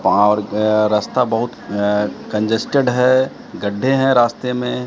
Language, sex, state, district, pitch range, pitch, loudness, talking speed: Hindi, male, Bihar, Katihar, 105-125 Hz, 120 Hz, -17 LUFS, 150 wpm